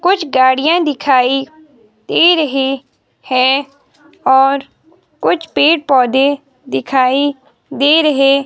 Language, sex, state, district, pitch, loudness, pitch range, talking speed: Hindi, female, Himachal Pradesh, Shimla, 275 Hz, -13 LUFS, 265-295 Hz, 90 wpm